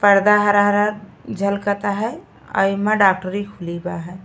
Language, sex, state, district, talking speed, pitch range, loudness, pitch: Bhojpuri, female, Uttar Pradesh, Ghazipur, 140 wpm, 195-205 Hz, -19 LUFS, 200 Hz